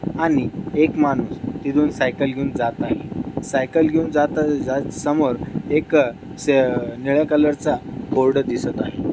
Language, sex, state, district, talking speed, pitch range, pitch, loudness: Marathi, male, Maharashtra, Dhule, 130 wpm, 135-150 Hz, 145 Hz, -20 LUFS